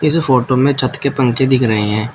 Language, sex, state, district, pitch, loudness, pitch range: Hindi, male, Uttar Pradesh, Shamli, 130 Hz, -14 LUFS, 120-135 Hz